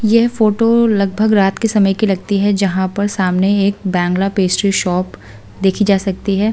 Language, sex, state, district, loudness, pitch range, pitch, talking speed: Hindi, female, Delhi, New Delhi, -15 LUFS, 190-210 Hz, 200 Hz, 195 wpm